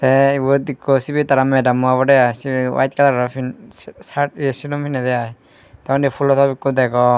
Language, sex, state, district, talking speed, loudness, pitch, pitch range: Chakma, male, Tripura, Unakoti, 190 wpm, -17 LUFS, 135 Hz, 130-140 Hz